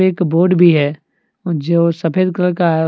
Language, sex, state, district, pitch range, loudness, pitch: Hindi, male, Jharkhand, Deoghar, 165-185 Hz, -14 LUFS, 175 Hz